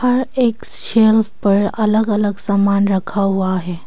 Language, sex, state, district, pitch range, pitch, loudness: Hindi, female, Arunachal Pradesh, Papum Pare, 200-220 Hz, 205 Hz, -15 LUFS